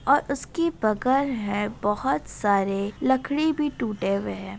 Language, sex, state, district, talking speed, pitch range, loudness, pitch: Hindi, female, Bihar, Begusarai, 145 wpm, 200-270 Hz, -25 LUFS, 215 Hz